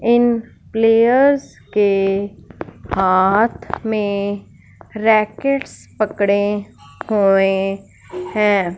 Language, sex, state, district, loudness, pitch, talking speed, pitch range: Hindi, male, Punjab, Fazilka, -17 LUFS, 205 Hz, 60 wpm, 195-225 Hz